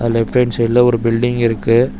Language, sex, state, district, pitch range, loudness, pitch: Tamil, male, Tamil Nadu, Chennai, 115-120 Hz, -15 LUFS, 115 Hz